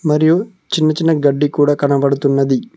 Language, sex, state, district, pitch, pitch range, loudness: Telugu, male, Telangana, Mahabubabad, 145 Hz, 140-160 Hz, -15 LUFS